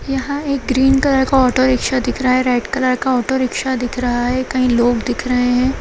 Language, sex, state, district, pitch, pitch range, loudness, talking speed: Kumaoni, female, Uttarakhand, Uttarkashi, 255 Hz, 245-265 Hz, -16 LUFS, 215 wpm